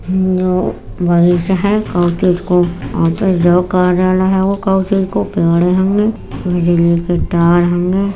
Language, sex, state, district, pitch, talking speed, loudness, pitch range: Hindi, female, Uttar Pradesh, Etah, 180 Hz, 110 wpm, -13 LUFS, 175-190 Hz